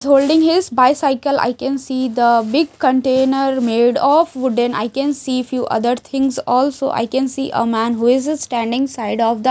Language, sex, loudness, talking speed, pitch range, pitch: English, female, -16 LUFS, 195 wpm, 240-275 Hz, 260 Hz